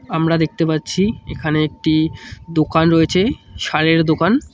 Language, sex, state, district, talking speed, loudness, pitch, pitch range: Bengali, male, West Bengal, Cooch Behar, 120 wpm, -17 LUFS, 160 Hz, 155-165 Hz